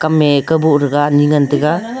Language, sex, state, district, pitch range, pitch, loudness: Wancho, male, Arunachal Pradesh, Longding, 145-155 Hz, 150 Hz, -13 LUFS